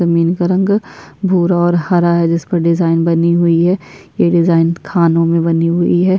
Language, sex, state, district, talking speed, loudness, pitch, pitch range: Hindi, female, Bihar, Kishanganj, 195 wpm, -13 LUFS, 170 Hz, 170-175 Hz